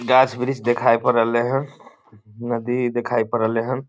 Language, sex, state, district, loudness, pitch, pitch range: Maithili, male, Bihar, Samastipur, -20 LUFS, 120 Hz, 115-130 Hz